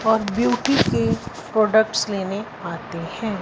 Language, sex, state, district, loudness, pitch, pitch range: Hindi, female, Punjab, Fazilka, -21 LUFS, 220 Hz, 195-225 Hz